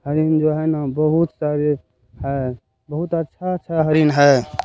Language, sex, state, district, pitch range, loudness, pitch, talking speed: Hindi, male, Bihar, Kishanganj, 135-160 Hz, -19 LUFS, 150 Hz, 130 wpm